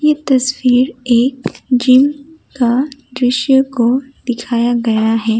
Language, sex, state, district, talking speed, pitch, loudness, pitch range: Hindi, female, Assam, Kamrup Metropolitan, 100 wpm, 255 Hz, -14 LUFS, 235-270 Hz